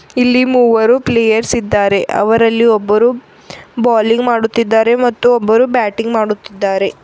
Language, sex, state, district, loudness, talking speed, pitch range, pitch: Kannada, female, Karnataka, Bidar, -12 LUFS, 100 wpm, 220-240 Hz, 230 Hz